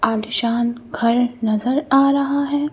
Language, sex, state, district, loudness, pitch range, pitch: Hindi, female, Madhya Pradesh, Bhopal, -19 LUFS, 230-280 Hz, 240 Hz